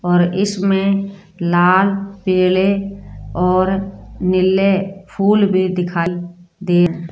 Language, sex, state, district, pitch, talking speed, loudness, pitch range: Hindi, female, Rajasthan, Jaipur, 185 Hz, 95 wpm, -16 LUFS, 175-195 Hz